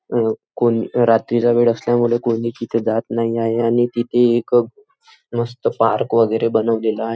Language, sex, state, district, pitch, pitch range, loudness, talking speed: Marathi, male, Maharashtra, Nagpur, 115 Hz, 115-120 Hz, -18 LUFS, 170 wpm